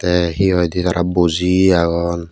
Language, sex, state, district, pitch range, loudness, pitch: Chakma, male, Tripura, West Tripura, 85-90 Hz, -16 LUFS, 90 Hz